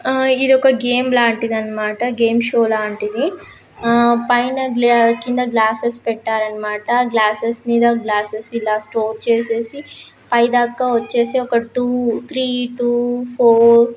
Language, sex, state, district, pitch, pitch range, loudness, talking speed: Telugu, female, Telangana, Karimnagar, 235 Hz, 230-245 Hz, -16 LUFS, 130 wpm